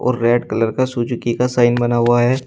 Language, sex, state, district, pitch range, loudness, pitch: Hindi, male, Uttar Pradesh, Shamli, 120-125 Hz, -17 LUFS, 120 Hz